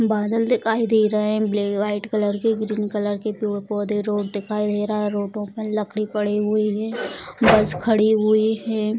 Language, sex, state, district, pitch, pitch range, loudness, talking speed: Hindi, female, Bihar, Sitamarhi, 215 Hz, 205-215 Hz, -21 LUFS, 185 wpm